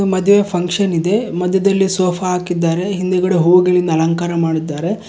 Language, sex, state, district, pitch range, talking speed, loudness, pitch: Kannada, male, Karnataka, Bellary, 170-190 Hz, 120 wpm, -15 LUFS, 180 Hz